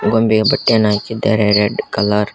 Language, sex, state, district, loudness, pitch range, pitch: Kannada, male, Karnataka, Koppal, -15 LUFS, 105-115 Hz, 110 Hz